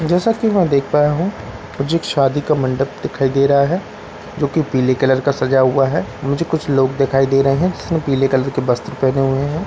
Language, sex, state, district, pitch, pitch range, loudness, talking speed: Hindi, male, Bihar, Katihar, 140 Hz, 135-155 Hz, -17 LUFS, 240 wpm